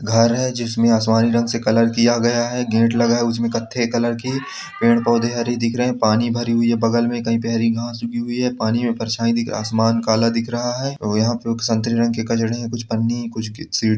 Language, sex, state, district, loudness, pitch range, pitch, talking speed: Hindi, male, Bihar, Samastipur, -19 LUFS, 115-120 Hz, 115 Hz, 260 wpm